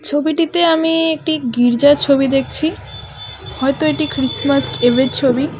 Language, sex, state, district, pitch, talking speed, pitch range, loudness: Bengali, female, West Bengal, Alipurduar, 285 Hz, 130 wpm, 265-315 Hz, -15 LUFS